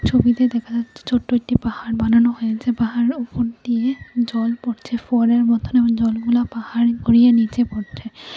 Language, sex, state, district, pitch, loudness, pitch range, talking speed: Bengali, female, Tripura, West Tripura, 235 Hz, -19 LUFS, 230-240 Hz, 150 wpm